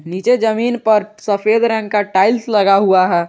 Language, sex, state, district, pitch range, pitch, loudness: Hindi, male, Jharkhand, Garhwa, 190-220 Hz, 210 Hz, -14 LUFS